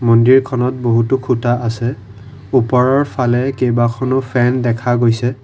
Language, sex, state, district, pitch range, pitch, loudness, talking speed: Assamese, male, Assam, Kamrup Metropolitan, 120-130 Hz, 125 Hz, -15 LUFS, 110 wpm